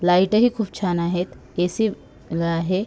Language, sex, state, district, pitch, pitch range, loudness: Marathi, female, Maharashtra, Sindhudurg, 180 Hz, 170-205 Hz, -22 LUFS